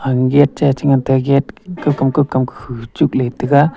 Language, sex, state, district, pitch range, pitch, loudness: Wancho, male, Arunachal Pradesh, Longding, 130-145 Hz, 140 Hz, -15 LUFS